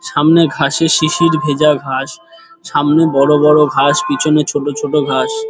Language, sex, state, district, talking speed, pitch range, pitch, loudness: Bengali, male, West Bengal, Dakshin Dinajpur, 155 wpm, 145-165 Hz, 150 Hz, -13 LUFS